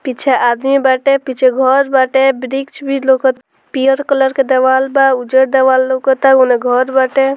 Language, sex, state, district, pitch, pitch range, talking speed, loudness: Bhojpuri, female, Bihar, Muzaffarpur, 265 Hz, 260-270 Hz, 170 wpm, -12 LUFS